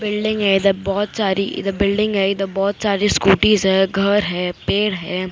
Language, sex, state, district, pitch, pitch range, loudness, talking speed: Hindi, female, Maharashtra, Mumbai Suburban, 195 Hz, 195-205 Hz, -18 LUFS, 190 wpm